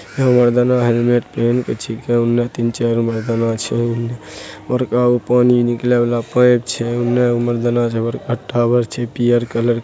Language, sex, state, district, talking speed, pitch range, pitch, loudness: Angika, male, Bihar, Begusarai, 115 wpm, 115-120 Hz, 120 Hz, -16 LUFS